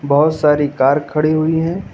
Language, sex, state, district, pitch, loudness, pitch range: Hindi, male, Uttar Pradesh, Lucknow, 150 Hz, -15 LUFS, 145-160 Hz